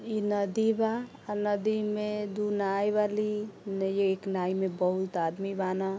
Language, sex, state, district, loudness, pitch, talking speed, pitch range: Bhojpuri, female, Uttar Pradesh, Gorakhpur, -30 LUFS, 205 Hz, 160 wpm, 190-210 Hz